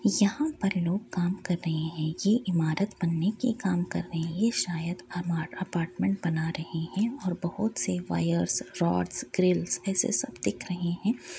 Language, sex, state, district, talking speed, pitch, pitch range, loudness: Hindi, female, Uttar Pradesh, Hamirpur, 170 wpm, 175 Hz, 165-200 Hz, -29 LUFS